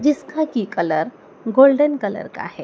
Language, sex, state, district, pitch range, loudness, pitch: Hindi, female, Madhya Pradesh, Dhar, 210-295 Hz, -18 LUFS, 265 Hz